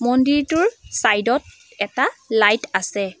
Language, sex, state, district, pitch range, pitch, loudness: Assamese, female, Assam, Sonitpur, 210-290 Hz, 245 Hz, -19 LUFS